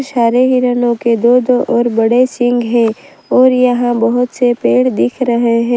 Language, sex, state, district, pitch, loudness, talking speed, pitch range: Hindi, female, Gujarat, Valsad, 245 Hz, -12 LUFS, 175 wpm, 235-250 Hz